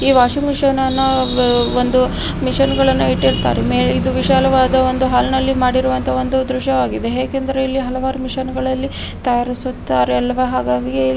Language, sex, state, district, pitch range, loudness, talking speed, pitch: Kannada, female, Karnataka, Mysore, 240-265 Hz, -16 LUFS, 130 wpm, 255 Hz